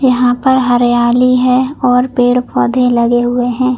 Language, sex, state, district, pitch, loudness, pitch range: Hindi, female, Chhattisgarh, Bilaspur, 245 Hz, -11 LUFS, 245-255 Hz